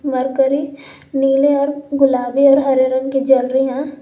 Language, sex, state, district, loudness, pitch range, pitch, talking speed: Hindi, female, Jharkhand, Garhwa, -15 LUFS, 265-280 Hz, 270 Hz, 165 wpm